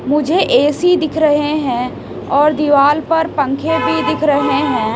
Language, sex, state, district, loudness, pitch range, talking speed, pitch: Hindi, female, Haryana, Rohtak, -14 LUFS, 285-320 Hz, 155 wpm, 300 Hz